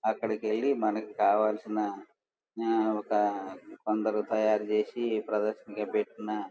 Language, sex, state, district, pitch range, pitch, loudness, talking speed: Telugu, male, Andhra Pradesh, Guntur, 105-110 Hz, 110 Hz, -30 LUFS, 85 wpm